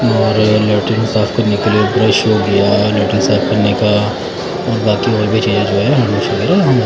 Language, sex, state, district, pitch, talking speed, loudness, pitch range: Hindi, male, Bihar, Katihar, 105 Hz, 150 wpm, -13 LUFS, 105-110 Hz